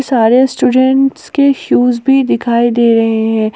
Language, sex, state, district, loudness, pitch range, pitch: Hindi, female, Jharkhand, Palamu, -11 LUFS, 230-265 Hz, 245 Hz